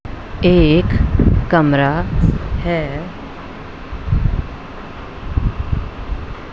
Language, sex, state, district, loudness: Hindi, female, Punjab, Pathankot, -17 LUFS